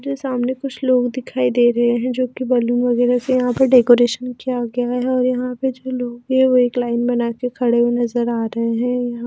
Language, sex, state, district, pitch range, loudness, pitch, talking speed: Hindi, female, Himachal Pradesh, Shimla, 240-255 Hz, -18 LUFS, 245 Hz, 225 wpm